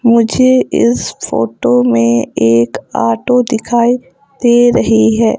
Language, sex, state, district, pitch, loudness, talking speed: Hindi, female, Madhya Pradesh, Umaria, 225 Hz, -12 LUFS, 110 wpm